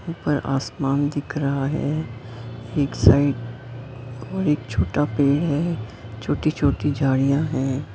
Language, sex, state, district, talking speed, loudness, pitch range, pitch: Hindi, female, Maharashtra, Mumbai Suburban, 115 wpm, -22 LUFS, 120-145 Hz, 140 Hz